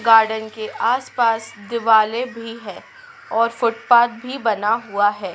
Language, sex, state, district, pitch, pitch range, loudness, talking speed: Hindi, female, Madhya Pradesh, Dhar, 230 Hz, 220-235 Hz, -19 LUFS, 135 wpm